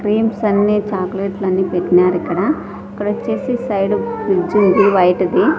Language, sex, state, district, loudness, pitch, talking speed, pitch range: Telugu, female, Andhra Pradesh, Sri Satya Sai, -16 LUFS, 200 Hz, 140 wpm, 185-210 Hz